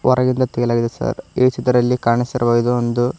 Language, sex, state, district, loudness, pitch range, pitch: Kannada, male, Karnataka, Koppal, -17 LUFS, 120-125 Hz, 120 Hz